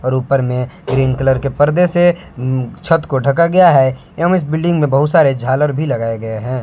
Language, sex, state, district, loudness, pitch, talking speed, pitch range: Hindi, male, Jharkhand, Palamu, -14 LUFS, 135 Hz, 225 wpm, 130-165 Hz